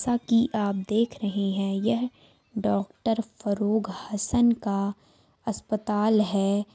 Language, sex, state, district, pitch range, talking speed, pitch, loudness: Hindi, female, Jharkhand, Sahebganj, 200-230 Hz, 115 wpm, 210 Hz, -26 LUFS